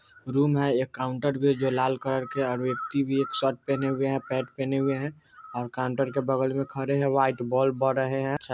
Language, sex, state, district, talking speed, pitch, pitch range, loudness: Bajjika, male, Bihar, Vaishali, 220 wpm, 135 Hz, 130-135 Hz, -27 LUFS